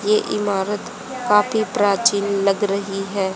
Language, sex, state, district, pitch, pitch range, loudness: Hindi, female, Haryana, Charkhi Dadri, 205 Hz, 195-210 Hz, -19 LUFS